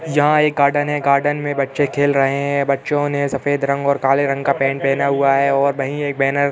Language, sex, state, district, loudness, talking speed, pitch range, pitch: Hindi, male, Uttar Pradesh, Hamirpur, -17 LUFS, 240 wpm, 140-145 Hz, 140 Hz